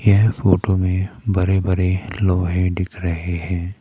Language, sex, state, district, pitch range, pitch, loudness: Hindi, male, Arunachal Pradesh, Papum Pare, 90-95 Hz, 95 Hz, -19 LUFS